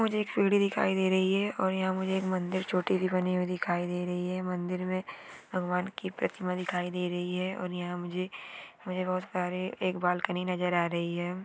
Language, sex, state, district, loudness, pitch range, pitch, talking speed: Marwari, female, Rajasthan, Churu, -31 LUFS, 180-185 Hz, 185 Hz, 205 wpm